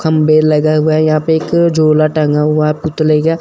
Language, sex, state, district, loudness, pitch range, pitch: Hindi, male, Chandigarh, Chandigarh, -12 LUFS, 155-160 Hz, 155 Hz